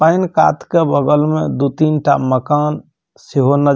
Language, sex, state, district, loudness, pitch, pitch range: Maithili, male, Bihar, Samastipur, -15 LUFS, 150 Hz, 140-155 Hz